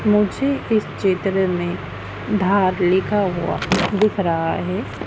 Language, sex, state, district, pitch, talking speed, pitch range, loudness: Hindi, female, Madhya Pradesh, Dhar, 195 Hz, 120 wpm, 180-210 Hz, -20 LUFS